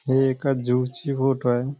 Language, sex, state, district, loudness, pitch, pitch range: Marathi, male, Maharashtra, Nagpur, -23 LUFS, 130 Hz, 125-135 Hz